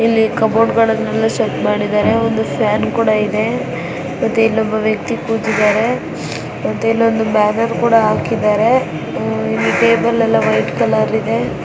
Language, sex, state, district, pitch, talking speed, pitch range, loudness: Kannada, female, Karnataka, Dharwad, 220 Hz, 130 wpm, 210-230 Hz, -15 LUFS